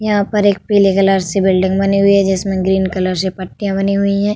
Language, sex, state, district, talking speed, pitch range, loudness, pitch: Hindi, female, Uttar Pradesh, Hamirpur, 245 wpm, 190-200 Hz, -14 LUFS, 195 Hz